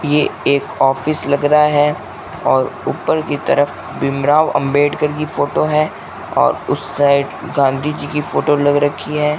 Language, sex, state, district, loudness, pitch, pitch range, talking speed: Hindi, male, Rajasthan, Bikaner, -16 LUFS, 145 Hz, 140-150 Hz, 165 wpm